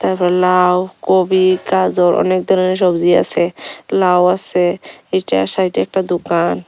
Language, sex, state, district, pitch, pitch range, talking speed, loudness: Bengali, female, Tripura, Unakoti, 180 Hz, 175-185 Hz, 125 wpm, -14 LUFS